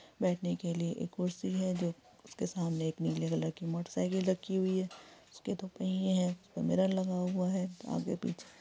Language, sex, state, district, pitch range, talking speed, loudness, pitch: Hindi, female, Jharkhand, Sahebganj, 170-190 Hz, 200 wpm, -35 LUFS, 185 Hz